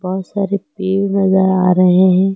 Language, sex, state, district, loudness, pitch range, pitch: Hindi, female, Uttar Pradesh, Lucknow, -14 LUFS, 185-195 Hz, 190 Hz